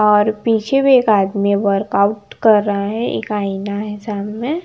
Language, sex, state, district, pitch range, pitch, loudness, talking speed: Hindi, female, Himachal Pradesh, Shimla, 200-220 Hz, 210 Hz, -16 LUFS, 170 wpm